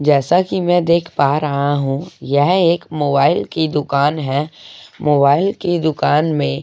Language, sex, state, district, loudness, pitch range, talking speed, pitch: Hindi, male, Goa, North and South Goa, -16 LUFS, 140-170 Hz, 165 wpm, 150 Hz